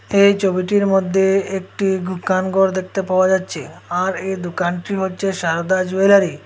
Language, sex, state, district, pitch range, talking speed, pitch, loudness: Bengali, male, Assam, Hailakandi, 185-195 Hz, 140 wpm, 190 Hz, -18 LUFS